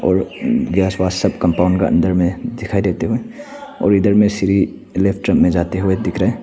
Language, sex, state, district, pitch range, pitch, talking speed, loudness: Hindi, male, Arunachal Pradesh, Papum Pare, 95-115 Hz, 95 Hz, 185 wpm, -16 LUFS